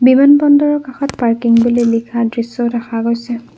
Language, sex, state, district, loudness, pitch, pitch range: Assamese, female, Assam, Kamrup Metropolitan, -13 LUFS, 240 Hz, 235-265 Hz